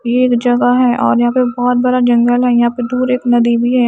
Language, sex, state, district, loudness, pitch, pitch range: Hindi, female, Haryana, Charkhi Dadri, -13 LUFS, 245 Hz, 240-250 Hz